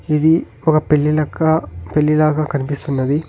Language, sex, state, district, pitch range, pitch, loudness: Telugu, male, Telangana, Hyderabad, 140-155 Hz, 150 Hz, -17 LUFS